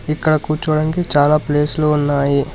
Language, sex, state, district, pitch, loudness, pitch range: Telugu, male, Telangana, Hyderabad, 150 Hz, -16 LUFS, 145-155 Hz